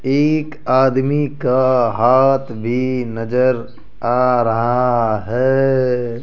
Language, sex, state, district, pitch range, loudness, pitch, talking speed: Hindi, male, Rajasthan, Jaipur, 120-135 Hz, -16 LUFS, 125 Hz, 85 wpm